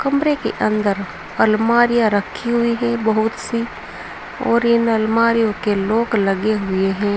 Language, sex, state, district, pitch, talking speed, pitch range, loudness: Hindi, female, Uttar Pradesh, Saharanpur, 220 Hz, 140 wpm, 205-235 Hz, -18 LUFS